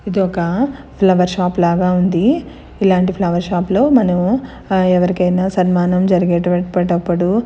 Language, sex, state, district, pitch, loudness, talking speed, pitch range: Telugu, female, Andhra Pradesh, Anantapur, 185 Hz, -15 LUFS, 130 wpm, 180-195 Hz